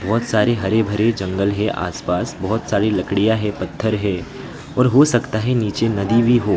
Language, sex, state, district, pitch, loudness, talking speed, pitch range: Hindi, male, West Bengal, Alipurduar, 110 Hz, -18 LUFS, 200 wpm, 100-115 Hz